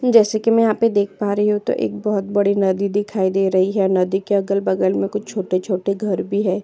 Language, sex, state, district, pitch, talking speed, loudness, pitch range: Hindi, female, Uttar Pradesh, Jyotiba Phule Nagar, 200 Hz, 245 wpm, -19 LUFS, 190-210 Hz